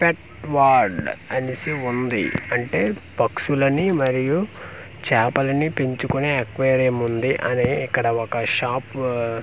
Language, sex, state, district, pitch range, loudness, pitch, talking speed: Telugu, male, Andhra Pradesh, Manyam, 120-140 Hz, -21 LUFS, 130 Hz, 100 wpm